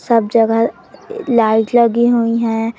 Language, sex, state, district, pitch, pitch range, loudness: Hindi, female, Madhya Pradesh, Umaria, 230 Hz, 225-235 Hz, -14 LUFS